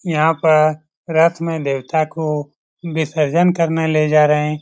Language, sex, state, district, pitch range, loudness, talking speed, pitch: Hindi, male, Bihar, Lakhisarai, 150-165 Hz, -17 LUFS, 155 wpm, 155 Hz